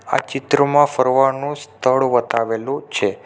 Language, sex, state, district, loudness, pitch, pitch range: Gujarati, male, Gujarat, Navsari, -18 LUFS, 135 Hz, 125-145 Hz